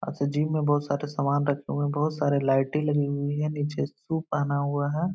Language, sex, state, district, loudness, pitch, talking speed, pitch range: Hindi, male, Uttar Pradesh, Hamirpur, -27 LUFS, 145 Hz, 245 wpm, 140-150 Hz